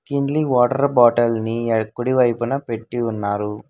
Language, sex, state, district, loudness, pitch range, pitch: Telugu, male, Telangana, Hyderabad, -19 LUFS, 115-130 Hz, 120 Hz